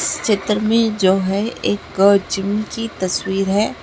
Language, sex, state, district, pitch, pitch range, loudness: Hindi, female, Bihar, Lakhisarai, 200 Hz, 195-215 Hz, -18 LUFS